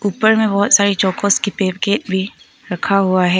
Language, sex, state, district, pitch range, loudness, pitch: Hindi, female, Arunachal Pradesh, Papum Pare, 190-205 Hz, -15 LUFS, 200 Hz